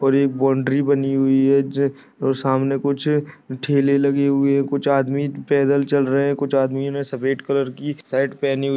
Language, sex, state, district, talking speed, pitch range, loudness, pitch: Hindi, male, Maharashtra, Pune, 205 wpm, 135-140 Hz, -20 LUFS, 140 Hz